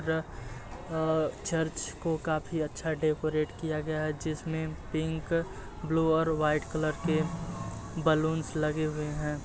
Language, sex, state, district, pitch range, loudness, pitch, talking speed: Hindi, male, Uttar Pradesh, Muzaffarnagar, 155-160 Hz, -31 LUFS, 155 Hz, 140 wpm